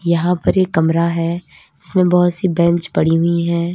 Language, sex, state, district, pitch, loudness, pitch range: Hindi, female, Uttar Pradesh, Lalitpur, 170 Hz, -16 LUFS, 170-180 Hz